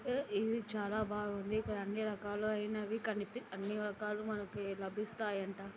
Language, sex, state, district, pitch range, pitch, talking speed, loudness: Telugu, female, Andhra Pradesh, Anantapur, 205-215 Hz, 210 Hz, 135 wpm, -39 LUFS